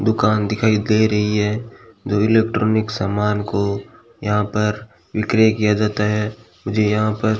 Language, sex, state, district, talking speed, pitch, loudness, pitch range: Hindi, male, Rajasthan, Bikaner, 145 wpm, 105 Hz, -19 LUFS, 105-110 Hz